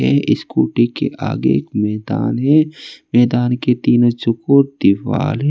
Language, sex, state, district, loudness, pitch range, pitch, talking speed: Hindi, male, Uttar Pradesh, Saharanpur, -16 LUFS, 110-135 Hz, 120 Hz, 130 wpm